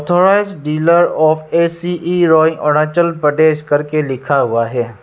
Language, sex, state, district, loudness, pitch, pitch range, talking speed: Hindi, male, Arunachal Pradesh, Lower Dibang Valley, -14 LUFS, 155 Hz, 150-170 Hz, 130 wpm